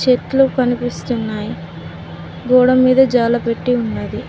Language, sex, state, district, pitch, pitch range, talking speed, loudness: Telugu, female, Telangana, Mahabubabad, 245 Hz, 235-255 Hz, 100 wpm, -15 LUFS